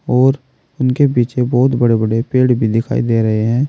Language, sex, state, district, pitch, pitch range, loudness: Hindi, male, Uttar Pradesh, Saharanpur, 125 Hz, 115-130 Hz, -15 LUFS